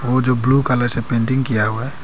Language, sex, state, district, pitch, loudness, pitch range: Hindi, male, Arunachal Pradesh, Papum Pare, 125 Hz, -17 LUFS, 115-130 Hz